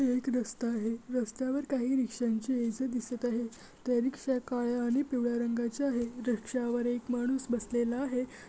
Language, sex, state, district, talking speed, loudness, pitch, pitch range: Marathi, female, Maharashtra, Chandrapur, 155 wpm, -32 LUFS, 245 Hz, 235-255 Hz